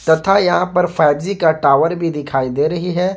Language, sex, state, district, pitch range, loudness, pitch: Hindi, male, Jharkhand, Garhwa, 150-180 Hz, -15 LUFS, 170 Hz